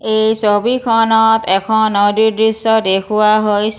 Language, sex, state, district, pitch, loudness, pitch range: Assamese, female, Assam, Kamrup Metropolitan, 220 Hz, -13 LUFS, 210-225 Hz